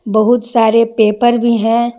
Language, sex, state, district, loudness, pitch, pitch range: Hindi, female, Jharkhand, Garhwa, -12 LUFS, 230 Hz, 220-240 Hz